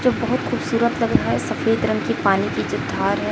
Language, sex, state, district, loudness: Hindi, female, Chhattisgarh, Raipur, -20 LUFS